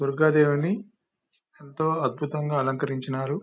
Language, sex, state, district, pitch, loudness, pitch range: Telugu, male, Telangana, Nalgonda, 150 Hz, -25 LUFS, 140-160 Hz